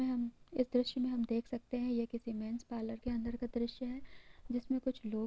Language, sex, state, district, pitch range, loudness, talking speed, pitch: Hindi, female, Bihar, Gaya, 235-250 Hz, -38 LUFS, 225 wpm, 240 Hz